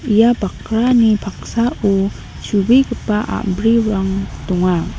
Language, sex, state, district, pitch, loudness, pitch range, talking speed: Garo, female, Meghalaya, North Garo Hills, 215 Hz, -16 LUFS, 195-230 Hz, 70 wpm